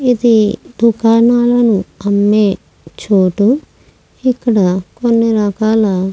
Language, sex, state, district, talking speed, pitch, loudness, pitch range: Telugu, female, Andhra Pradesh, Krishna, 90 wpm, 220 Hz, -13 LUFS, 205-235 Hz